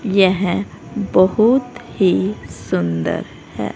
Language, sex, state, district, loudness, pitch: Hindi, female, Haryana, Rohtak, -18 LUFS, 185 Hz